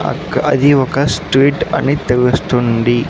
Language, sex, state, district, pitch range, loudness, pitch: Telugu, male, Andhra Pradesh, Sri Satya Sai, 120-140 Hz, -14 LUFS, 135 Hz